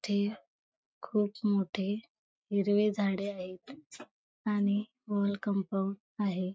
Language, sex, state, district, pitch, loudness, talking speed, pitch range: Marathi, female, Maharashtra, Chandrapur, 205 Hz, -32 LUFS, 90 wpm, 195-210 Hz